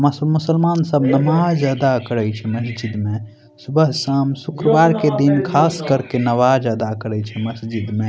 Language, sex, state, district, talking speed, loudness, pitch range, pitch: Maithili, male, Bihar, Madhepura, 155 wpm, -17 LUFS, 110-150 Hz, 135 Hz